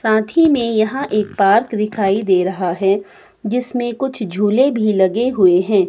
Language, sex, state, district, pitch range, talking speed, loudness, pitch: Hindi, female, Himachal Pradesh, Shimla, 195-240 Hz, 165 wpm, -16 LUFS, 215 Hz